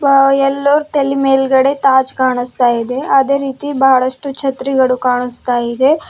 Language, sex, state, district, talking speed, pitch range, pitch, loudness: Kannada, female, Karnataka, Bidar, 130 wpm, 255-275 Hz, 270 Hz, -13 LUFS